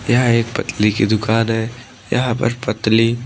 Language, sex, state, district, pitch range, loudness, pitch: Hindi, male, Maharashtra, Washim, 110-120 Hz, -17 LUFS, 115 Hz